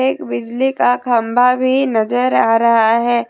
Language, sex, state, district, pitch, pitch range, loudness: Hindi, female, Jharkhand, Deoghar, 240 Hz, 230-255 Hz, -14 LUFS